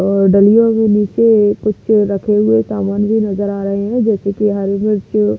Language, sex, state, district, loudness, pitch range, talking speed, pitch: Hindi, female, Delhi, New Delhi, -13 LUFS, 200-215 Hz, 155 wpm, 205 Hz